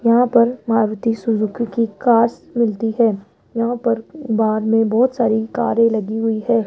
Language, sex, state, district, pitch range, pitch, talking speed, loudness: Hindi, female, Rajasthan, Jaipur, 220-235 Hz, 230 Hz, 160 wpm, -18 LUFS